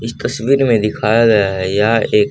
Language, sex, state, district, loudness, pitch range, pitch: Hindi, male, Haryana, Rohtak, -14 LUFS, 105-115 Hz, 115 Hz